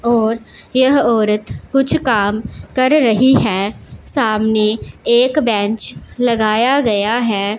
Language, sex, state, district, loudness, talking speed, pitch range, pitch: Hindi, female, Punjab, Pathankot, -15 LUFS, 110 wpm, 215-255 Hz, 225 Hz